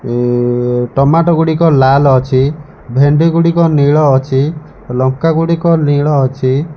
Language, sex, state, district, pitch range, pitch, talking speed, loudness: Odia, male, Odisha, Malkangiri, 130-160 Hz, 140 Hz, 115 wpm, -11 LUFS